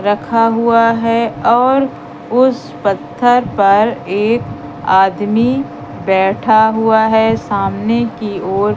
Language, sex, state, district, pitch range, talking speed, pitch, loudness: Hindi, female, Madhya Pradesh, Katni, 200-235 Hz, 100 wpm, 220 Hz, -13 LUFS